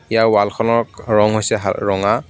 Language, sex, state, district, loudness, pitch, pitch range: Assamese, male, Assam, Kamrup Metropolitan, -16 LUFS, 110 Hz, 105-115 Hz